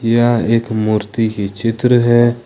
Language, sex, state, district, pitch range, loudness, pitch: Hindi, male, Jharkhand, Ranchi, 110-120 Hz, -15 LUFS, 115 Hz